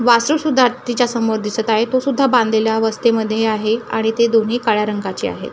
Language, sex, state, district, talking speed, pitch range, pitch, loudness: Marathi, female, Maharashtra, Gondia, 185 wpm, 220-245 Hz, 225 Hz, -17 LUFS